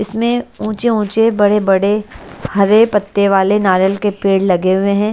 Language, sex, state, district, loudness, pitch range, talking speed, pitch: Hindi, female, Haryana, Charkhi Dadri, -14 LUFS, 195-215 Hz, 165 wpm, 205 Hz